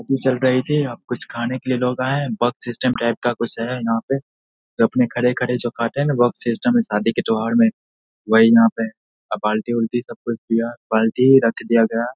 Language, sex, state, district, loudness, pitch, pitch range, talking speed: Hindi, male, Bihar, Saharsa, -19 LUFS, 120 Hz, 115-125 Hz, 240 wpm